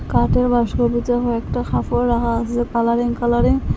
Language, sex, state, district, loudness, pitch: Bengali, female, Assam, Hailakandi, -19 LUFS, 235 Hz